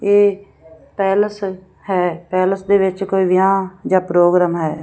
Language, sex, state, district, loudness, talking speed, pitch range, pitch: Punjabi, female, Punjab, Fazilka, -17 LUFS, 135 wpm, 180-195 Hz, 190 Hz